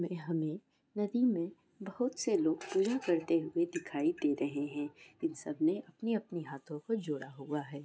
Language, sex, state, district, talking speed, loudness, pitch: Maithili, female, Bihar, Araria, 170 wpm, -35 LUFS, 200 Hz